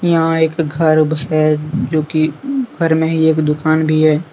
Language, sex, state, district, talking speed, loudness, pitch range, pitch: Hindi, male, Jharkhand, Deoghar, 180 wpm, -15 LUFS, 155-165 Hz, 155 Hz